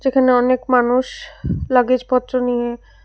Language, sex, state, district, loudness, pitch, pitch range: Bengali, female, Tripura, West Tripura, -17 LUFS, 250 Hz, 245-255 Hz